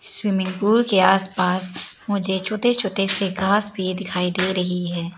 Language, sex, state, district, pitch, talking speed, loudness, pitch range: Hindi, female, Arunachal Pradesh, Lower Dibang Valley, 190 Hz, 160 wpm, -20 LUFS, 185-200 Hz